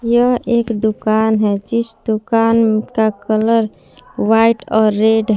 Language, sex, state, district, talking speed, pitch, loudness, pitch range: Hindi, female, Jharkhand, Palamu, 135 wpm, 220 Hz, -15 LUFS, 215-230 Hz